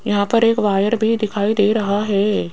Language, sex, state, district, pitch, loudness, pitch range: Hindi, female, Rajasthan, Jaipur, 210 Hz, -17 LUFS, 205-220 Hz